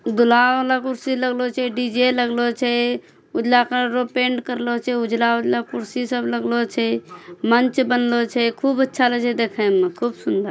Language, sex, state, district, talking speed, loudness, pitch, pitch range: Angika, female, Bihar, Bhagalpur, 170 wpm, -20 LUFS, 240 Hz, 230-250 Hz